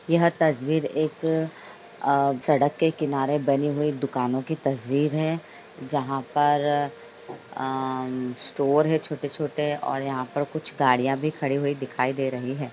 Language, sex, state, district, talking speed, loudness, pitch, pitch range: Hindi, female, Bihar, Jamui, 155 wpm, -25 LUFS, 145 Hz, 135-155 Hz